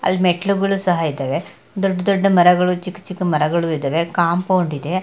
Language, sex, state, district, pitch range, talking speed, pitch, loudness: Kannada, female, Karnataka, Mysore, 170-185 Hz, 155 wpm, 180 Hz, -17 LUFS